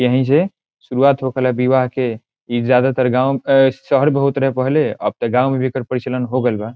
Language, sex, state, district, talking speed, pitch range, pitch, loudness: Bhojpuri, male, Bihar, Saran, 215 wpm, 125-135 Hz, 130 Hz, -17 LUFS